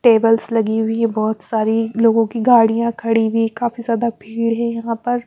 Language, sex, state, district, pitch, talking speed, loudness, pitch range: Hindi, female, Bihar, West Champaran, 230 Hz, 205 wpm, -17 LUFS, 225-235 Hz